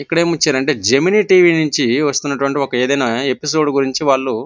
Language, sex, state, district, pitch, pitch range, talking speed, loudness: Telugu, male, Andhra Pradesh, Visakhapatnam, 140 Hz, 135-160 Hz, 190 wpm, -15 LUFS